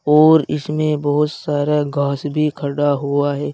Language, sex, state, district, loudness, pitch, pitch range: Hindi, male, Uttar Pradesh, Saharanpur, -17 LUFS, 145 Hz, 145-150 Hz